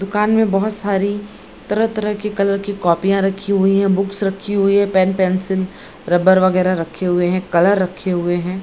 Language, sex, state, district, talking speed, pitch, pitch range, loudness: Hindi, female, Bihar, Gaya, 195 wpm, 195 Hz, 185-200 Hz, -17 LUFS